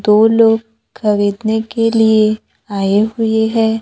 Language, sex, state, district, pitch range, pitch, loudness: Hindi, female, Maharashtra, Gondia, 210-225 Hz, 220 Hz, -14 LUFS